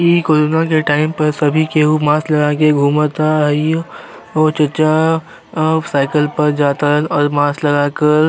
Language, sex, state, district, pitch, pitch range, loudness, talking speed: Bhojpuri, male, Uttar Pradesh, Deoria, 150 Hz, 150-155 Hz, -14 LUFS, 165 wpm